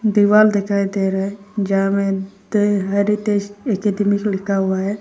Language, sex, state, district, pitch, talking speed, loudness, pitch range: Hindi, female, Arunachal Pradesh, Lower Dibang Valley, 200 Hz, 155 wpm, -18 LUFS, 195-205 Hz